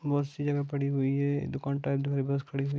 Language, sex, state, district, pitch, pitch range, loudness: Hindi, male, Bihar, Gopalganj, 140 Hz, 140-145 Hz, -31 LUFS